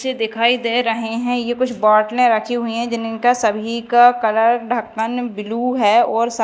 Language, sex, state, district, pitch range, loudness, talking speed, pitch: Hindi, female, Madhya Pradesh, Dhar, 225-245 Hz, -17 LUFS, 175 wpm, 235 Hz